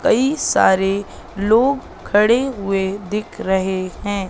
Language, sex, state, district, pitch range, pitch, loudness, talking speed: Hindi, female, Madhya Pradesh, Katni, 190-225 Hz, 205 Hz, -18 LUFS, 110 wpm